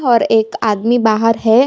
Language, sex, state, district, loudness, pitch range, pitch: Hindi, female, Chhattisgarh, Bilaspur, -14 LUFS, 220-240 Hz, 225 Hz